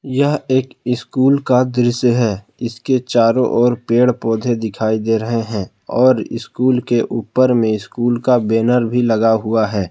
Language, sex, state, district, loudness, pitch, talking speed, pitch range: Hindi, male, Jharkhand, Palamu, -16 LUFS, 120 Hz, 165 wpm, 115-125 Hz